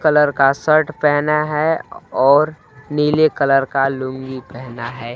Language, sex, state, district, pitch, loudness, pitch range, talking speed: Hindi, male, Bihar, Kaimur, 145 Hz, -17 LUFS, 130-150 Hz, 140 wpm